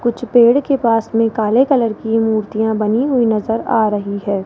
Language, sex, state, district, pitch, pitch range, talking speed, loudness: Hindi, male, Rajasthan, Jaipur, 225 Hz, 215-240 Hz, 200 wpm, -15 LUFS